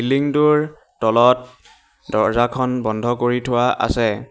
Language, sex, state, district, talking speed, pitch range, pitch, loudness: Assamese, male, Assam, Hailakandi, 110 wpm, 115-130 Hz, 120 Hz, -18 LUFS